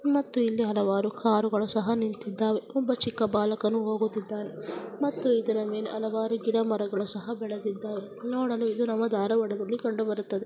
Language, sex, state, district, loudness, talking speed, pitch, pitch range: Kannada, female, Karnataka, Dharwad, -28 LUFS, 120 wpm, 220 Hz, 210-230 Hz